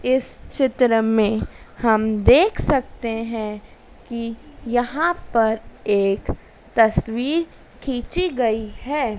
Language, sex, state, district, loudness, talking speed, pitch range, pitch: Hindi, female, Madhya Pradesh, Dhar, -21 LUFS, 100 wpm, 220-260 Hz, 230 Hz